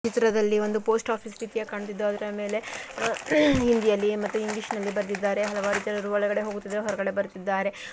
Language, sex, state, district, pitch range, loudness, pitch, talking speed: Kannada, female, Karnataka, Mysore, 205-220 Hz, -27 LUFS, 210 Hz, 145 wpm